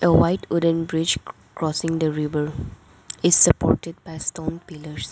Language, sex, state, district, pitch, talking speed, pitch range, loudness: English, female, Arunachal Pradesh, Lower Dibang Valley, 160 Hz, 150 wpm, 150-165 Hz, -21 LUFS